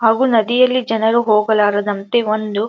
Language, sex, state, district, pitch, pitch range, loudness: Kannada, female, Karnataka, Dharwad, 220 Hz, 215-235 Hz, -15 LUFS